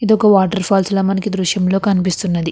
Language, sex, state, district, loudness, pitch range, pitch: Telugu, female, Andhra Pradesh, Krishna, -15 LUFS, 185-200 Hz, 195 Hz